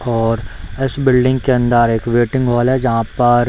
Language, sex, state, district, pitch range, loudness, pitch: Hindi, male, Bihar, Darbhanga, 115-130 Hz, -15 LUFS, 120 Hz